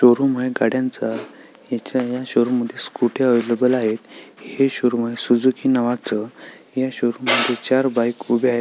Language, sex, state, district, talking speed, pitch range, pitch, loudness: Marathi, male, Maharashtra, Sindhudurg, 145 wpm, 120-130 Hz, 125 Hz, -20 LUFS